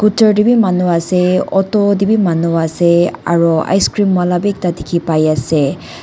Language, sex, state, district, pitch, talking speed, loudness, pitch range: Nagamese, female, Nagaland, Dimapur, 180 Hz, 130 wpm, -13 LUFS, 165-200 Hz